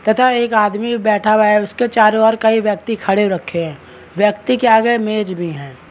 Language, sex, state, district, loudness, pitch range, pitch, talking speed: Hindi, male, Maharashtra, Chandrapur, -15 LUFS, 195-225 Hz, 215 Hz, 215 wpm